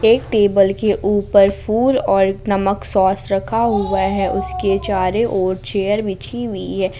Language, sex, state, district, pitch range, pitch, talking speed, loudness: Hindi, female, Jharkhand, Palamu, 195-210 Hz, 200 Hz, 155 wpm, -17 LUFS